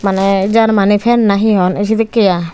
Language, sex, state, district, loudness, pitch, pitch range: Chakma, female, Tripura, Unakoti, -12 LUFS, 205 Hz, 195-220 Hz